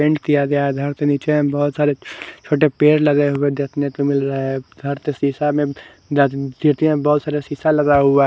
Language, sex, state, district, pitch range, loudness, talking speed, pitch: Hindi, male, Haryana, Charkhi Dadri, 140-150 Hz, -18 LUFS, 195 wpm, 145 Hz